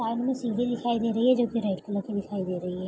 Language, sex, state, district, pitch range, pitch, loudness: Hindi, female, Bihar, Araria, 200-240 Hz, 230 Hz, -27 LUFS